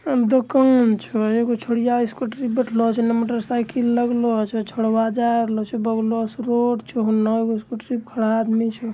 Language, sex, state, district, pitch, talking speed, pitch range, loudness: Angika, male, Bihar, Bhagalpur, 230 Hz, 170 wpm, 225-240 Hz, -20 LUFS